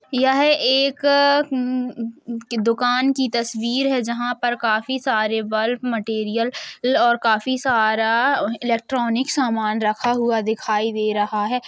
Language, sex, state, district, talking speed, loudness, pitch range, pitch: Hindi, female, Uttar Pradesh, Jalaun, 130 wpm, -20 LUFS, 220-260 Hz, 235 Hz